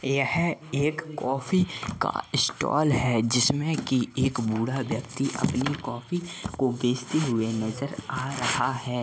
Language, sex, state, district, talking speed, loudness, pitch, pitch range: Hindi, male, Bihar, Vaishali, 135 wpm, -26 LUFS, 135 Hz, 125-145 Hz